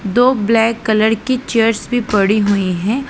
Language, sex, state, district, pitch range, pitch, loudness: Hindi, female, Punjab, Pathankot, 205-240 Hz, 225 Hz, -15 LUFS